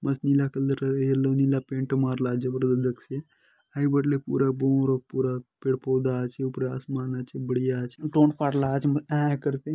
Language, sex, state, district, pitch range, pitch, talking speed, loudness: Halbi, male, Chhattisgarh, Bastar, 130-140 Hz, 135 Hz, 50 wpm, -26 LUFS